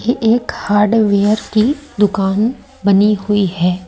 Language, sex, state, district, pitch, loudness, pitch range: Hindi, female, Madhya Pradesh, Umaria, 210 Hz, -15 LUFS, 200-225 Hz